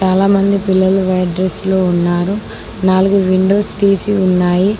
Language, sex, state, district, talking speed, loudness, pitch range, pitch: Telugu, female, Telangana, Mahabubabad, 125 wpm, -13 LUFS, 185-200 Hz, 190 Hz